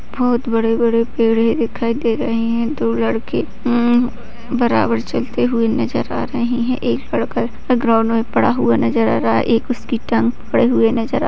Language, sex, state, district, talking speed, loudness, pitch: Hindi, female, Bihar, Jamui, 180 wpm, -17 LUFS, 230 Hz